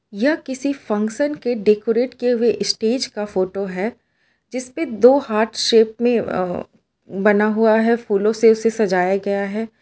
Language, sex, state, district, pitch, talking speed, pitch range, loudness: Hindi, female, Gujarat, Valsad, 225 Hz, 160 wpm, 210-245 Hz, -18 LUFS